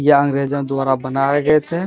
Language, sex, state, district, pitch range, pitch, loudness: Hindi, male, Bihar, Bhagalpur, 135-150 Hz, 140 Hz, -17 LUFS